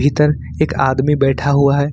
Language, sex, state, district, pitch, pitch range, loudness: Hindi, male, Jharkhand, Ranchi, 140 Hz, 135-145 Hz, -15 LUFS